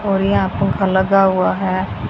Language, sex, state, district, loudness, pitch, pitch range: Hindi, female, Haryana, Jhajjar, -16 LUFS, 190 Hz, 185-195 Hz